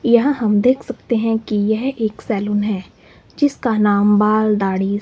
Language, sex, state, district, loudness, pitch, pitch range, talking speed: Hindi, male, Himachal Pradesh, Shimla, -17 LUFS, 215 Hz, 205-235 Hz, 165 wpm